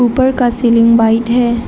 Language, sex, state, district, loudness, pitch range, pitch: Hindi, female, Arunachal Pradesh, Lower Dibang Valley, -11 LUFS, 230-245 Hz, 235 Hz